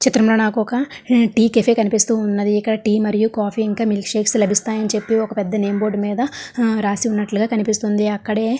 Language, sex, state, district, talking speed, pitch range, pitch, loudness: Telugu, male, Andhra Pradesh, Srikakulam, 200 wpm, 210-225 Hz, 220 Hz, -18 LUFS